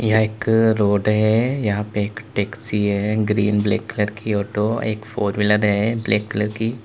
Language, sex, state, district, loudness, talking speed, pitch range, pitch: Hindi, male, Uttar Pradesh, Lalitpur, -20 LUFS, 175 wpm, 105-110 Hz, 105 Hz